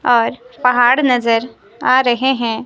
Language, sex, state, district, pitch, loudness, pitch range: Hindi, female, Himachal Pradesh, Shimla, 245 Hz, -15 LUFS, 235-255 Hz